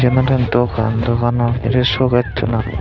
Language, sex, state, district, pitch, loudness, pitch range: Chakma, male, Tripura, Dhalai, 120 Hz, -16 LUFS, 115-125 Hz